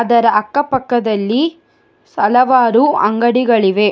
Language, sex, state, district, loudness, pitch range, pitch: Kannada, female, Karnataka, Bangalore, -13 LUFS, 215-255 Hz, 235 Hz